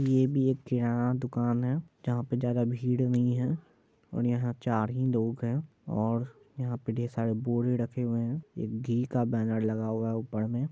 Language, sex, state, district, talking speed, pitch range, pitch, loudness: Hindi, male, Bihar, Madhepura, 195 wpm, 115-125 Hz, 120 Hz, -30 LUFS